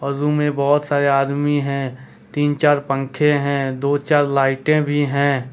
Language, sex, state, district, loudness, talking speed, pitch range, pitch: Hindi, male, Jharkhand, Ranchi, -18 LUFS, 175 wpm, 140-145 Hz, 140 Hz